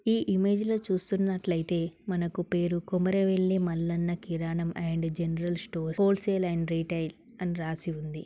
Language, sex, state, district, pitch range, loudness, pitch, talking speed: Telugu, female, Telangana, Karimnagar, 165-190 Hz, -29 LUFS, 175 Hz, 140 wpm